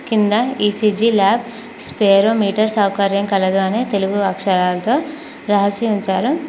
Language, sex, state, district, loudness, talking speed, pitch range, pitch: Telugu, female, Telangana, Mahabubabad, -16 LUFS, 110 wpm, 200-230 Hz, 210 Hz